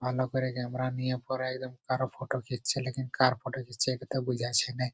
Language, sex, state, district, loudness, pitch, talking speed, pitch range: Bengali, male, West Bengal, Purulia, -31 LUFS, 130 Hz, 180 wpm, 125-130 Hz